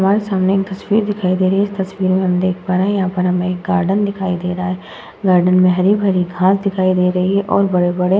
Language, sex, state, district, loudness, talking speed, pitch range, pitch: Hindi, female, Uttar Pradesh, Muzaffarnagar, -16 LUFS, 250 wpm, 180-195 Hz, 185 Hz